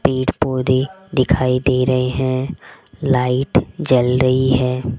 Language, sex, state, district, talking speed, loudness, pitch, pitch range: Hindi, female, Rajasthan, Jaipur, 120 wpm, -17 LUFS, 130 Hz, 125-130 Hz